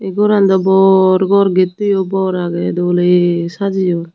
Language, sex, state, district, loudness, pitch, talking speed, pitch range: Chakma, female, Tripura, Unakoti, -13 LUFS, 190 Hz, 160 wpm, 180-195 Hz